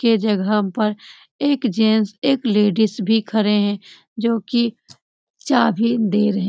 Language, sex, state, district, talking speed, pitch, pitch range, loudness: Hindi, female, Bihar, Jamui, 150 wpm, 220 Hz, 210-235 Hz, -19 LUFS